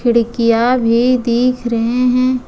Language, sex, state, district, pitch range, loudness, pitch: Hindi, female, Jharkhand, Ranchi, 235-250 Hz, -14 LUFS, 240 Hz